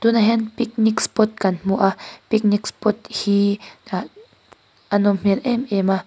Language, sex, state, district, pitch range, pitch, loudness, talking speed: Mizo, female, Mizoram, Aizawl, 195-225 Hz, 210 Hz, -20 LUFS, 170 wpm